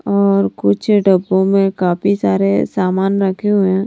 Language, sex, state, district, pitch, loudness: Hindi, female, Punjab, Fazilka, 190 Hz, -15 LUFS